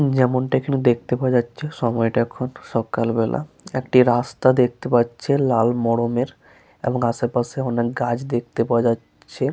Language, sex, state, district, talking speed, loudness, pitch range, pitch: Bengali, male, West Bengal, Paschim Medinipur, 130 wpm, -21 LUFS, 120-130 Hz, 120 Hz